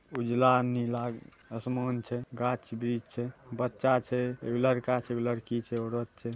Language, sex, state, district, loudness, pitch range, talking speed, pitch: Maithili, male, Bihar, Saharsa, -31 LUFS, 120-125 Hz, 150 wpm, 120 Hz